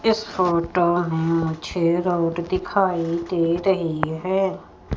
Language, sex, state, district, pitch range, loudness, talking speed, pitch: Hindi, female, Madhya Pradesh, Katni, 165-185 Hz, -22 LUFS, 110 wpm, 170 Hz